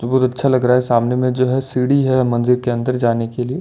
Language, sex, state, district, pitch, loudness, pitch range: Hindi, male, Delhi, New Delhi, 125 Hz, -17 LUFS, 120-130 Hz